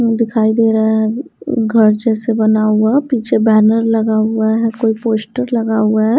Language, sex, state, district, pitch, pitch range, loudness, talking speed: Hindi, female, Haryana, Rohtak, 220 Hz, 220-230 Hz, -14 LUFS, 175 wpm